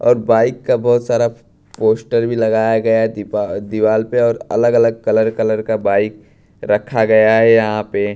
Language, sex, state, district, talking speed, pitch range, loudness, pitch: Hindi, male, Bihar, Katihar, 175 wpm, 105-115 Hz, -15 LUFS, 110 Hz